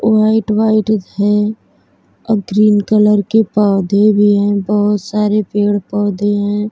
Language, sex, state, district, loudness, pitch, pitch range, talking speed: Hindi, female, Bihar, Vaishali, -13 LUFS, 210 Hz, 205-215 Hz, 125 wpm